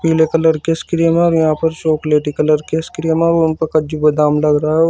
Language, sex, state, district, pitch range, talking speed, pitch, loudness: Hindi, male, Uttar Pradesh, Shamli, 155-165 Hz, 230 wpm, 160 Hz, -15 LUFS